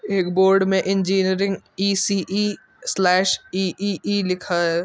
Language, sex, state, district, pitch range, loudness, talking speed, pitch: Hindi, male, Uttar Pradesh, Etah, 185-200 Hz, -21 LUFS, 110 wpm, 190 Hz